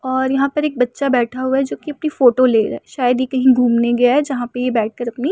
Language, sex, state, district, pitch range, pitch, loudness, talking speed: Hindi, female, Uttar Pradesh, Muzaffarnagar, 245-270 Hz, 255 Hz, -17 LUFS, 315 wpm